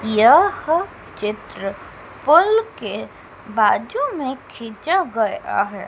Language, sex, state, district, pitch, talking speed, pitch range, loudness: Hindi, female, Madhya Pradesh, Dhar, 285 Hz, 90 wpm, 220-355 Hz, -19 LUFS